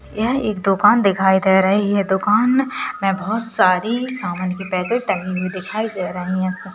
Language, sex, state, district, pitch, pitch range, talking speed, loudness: Hindi, female, Uttarakhand, Uttarkashi, 195 Hz, 185-220 Hz, 180 wpm, -18 LUFS